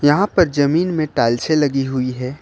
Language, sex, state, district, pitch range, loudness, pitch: Hindi, male, Jharkhand, Ranchi, 130-155 Hz, -17 LUFS, 145 Hz